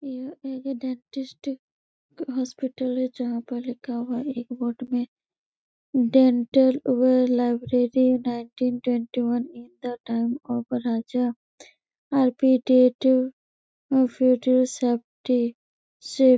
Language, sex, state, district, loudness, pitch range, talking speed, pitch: Hindi, female, Chhattisgarh, Bastar, -24 LUFS, 245-260 Hz, 90 wpm, 255 Hz